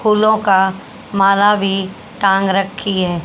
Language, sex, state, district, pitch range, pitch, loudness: Hindi, female, Haryana, Charkhi Dadri, 190-205 Hz, 195 Hz, -15 LUFS